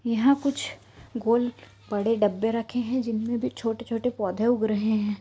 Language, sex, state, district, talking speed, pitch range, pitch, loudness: Hindi, female, Bihar, Saran, 160 wpm, 220-245 Hz, 230 Hz, -26 LUFS